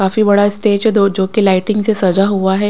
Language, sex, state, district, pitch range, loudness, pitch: Hindi, female, Maharashtra, Washim, 195-210 Hz, -13 LUFS, 200 Hz